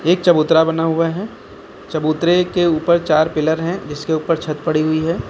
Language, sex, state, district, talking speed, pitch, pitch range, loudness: Hindi, male, Uttar Pradesh, Lucknow, 190 wpm, 160 Hz, 155-170 Hz, -17 LUFS